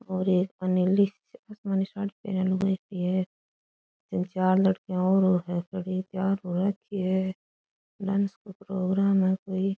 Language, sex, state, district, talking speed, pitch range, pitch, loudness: Rajasthani, female, Rajasthan, Churu, 135 wpm, 185-195 Hz, 190 Hz, -27 LUFS